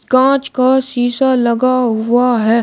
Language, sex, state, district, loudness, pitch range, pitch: Hindi, male, Uttar Pradesh, Shamli, -13 LUFS, 240-260 Hz, 250 Hz